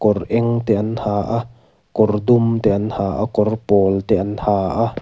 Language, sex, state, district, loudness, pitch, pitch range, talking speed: Mizo, male, Mizoram, Aizawl, -18 LUFS, 105 Hz, 100-115 Hz, 205 wpm